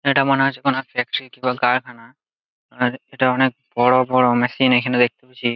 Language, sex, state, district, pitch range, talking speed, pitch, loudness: Bengali, male, West Bengal, Jalpaiguri, 125-135 Hz, 185 wpm, 125 Hz, -19 LUFS